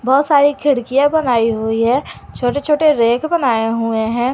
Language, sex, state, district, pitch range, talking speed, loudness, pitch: Hindi, female, Jharkhand, Garhwa, 230-285 Hz, 165 wpm, -15 LUFS, 250 Hz